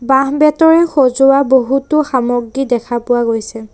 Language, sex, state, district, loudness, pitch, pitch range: Assamese, female, Assam, Sonitpur, -12 LUFS, 265 Hz, 240-275 Hz